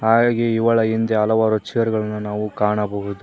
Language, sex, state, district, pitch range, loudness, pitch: Kannada, male, Karnataka, Koppal, 105-115 Hz, -19 LUFS, 110 Hz